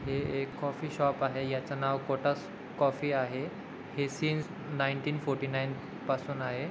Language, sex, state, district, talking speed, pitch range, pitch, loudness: Marathi, male, Maharashtra, Dhule, 145 wpm, 135-145 Hz, 140 Hz, -33 LUFS